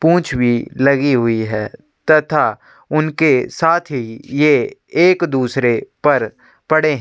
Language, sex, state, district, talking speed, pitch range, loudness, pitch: Hindi, male, Chhattisgarh, Sukma, 130 wpm, 125-160 Hz, -16 LUFS, 150 Hz